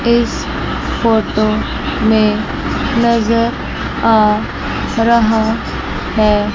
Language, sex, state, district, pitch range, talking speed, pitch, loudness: Hindi, female, Chandigarh, Chandigarh, 215-230 Hz, 65 wpm, 225 Hz, -15 LUFS